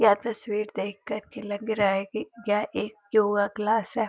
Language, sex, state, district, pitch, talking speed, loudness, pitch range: Hindi, female, Uttar Pradesh, Etah, 210 Hz, 205 wpm, -27 LUFS, 205-220 Hz